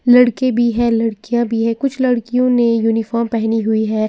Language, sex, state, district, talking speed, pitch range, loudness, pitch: Hindi, female, Uttar Pradesh, Lalitpur, 190 wpm, 225-245 Hz, -16 LUFS, 235 Hz